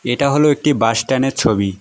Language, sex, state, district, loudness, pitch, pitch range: Bengali, female, West Bengal, Alipurduar, -15 LUFS, 130 Hz, 115-145 Hz